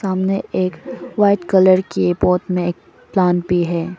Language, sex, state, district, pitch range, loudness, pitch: Hindi, female, Arunachal Pradesh, Papum Pare, 175-190 Hz, -17 LUFS, 180 Hz